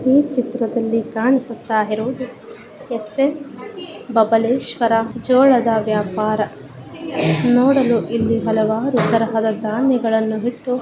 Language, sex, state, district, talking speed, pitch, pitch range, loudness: Kannada, female, Karnataka, Bijapur, 65 wpm, 230 Hz, 220-250 Hz, -18 LUFS